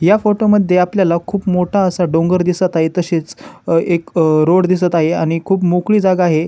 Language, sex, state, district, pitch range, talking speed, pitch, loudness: Marathi, male, Maharashtra, Chandrapur, 165-185 Hz, 205 wpm, 180 Hz, -14 LUFS